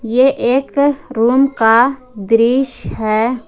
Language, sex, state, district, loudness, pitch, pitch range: Hindi, female, Jharkhand, Ranchi, -14 LUFS, 245 Hz, 225-265 Hz